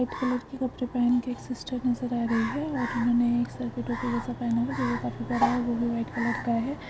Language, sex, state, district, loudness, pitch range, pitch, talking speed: Hindi, female, Andhra Pradesh, Anantapur, -28 LUFS, 235-250 Hz, 240 Hz, 225 wpm